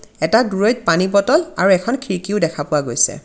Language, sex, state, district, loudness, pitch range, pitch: Assamese, female, Assam, Kamrup Metropolitan, -17 LUFS, 165-225 Hz, 195 Hz